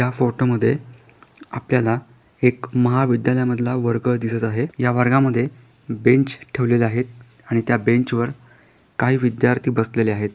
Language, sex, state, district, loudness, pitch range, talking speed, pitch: Marathi, male, Maharashtra, Pune, -20 LUFS, 115-125 Hz, 140 wpm, 120 Hz